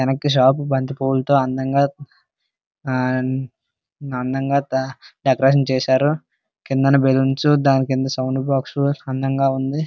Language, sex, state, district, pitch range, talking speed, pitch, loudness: Telugu, male, Andhra Pradesh, Srikakulam, 130-140 Hz, 90 wpm, 135 Hz, -19 LUFS